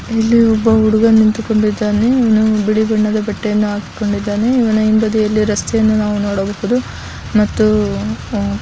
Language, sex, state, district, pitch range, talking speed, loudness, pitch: Kannada, female, Karnataka, Dakshina Kannada, 210-225 Hz, 120 wpm, -14 LUFS, 215 Hz